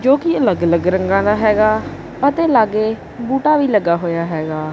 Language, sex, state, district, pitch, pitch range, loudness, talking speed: Punjabi, female, Punjab, Kapurthala, 215 Hz, 175-270 Hz, -16 LUFS, 165 wpm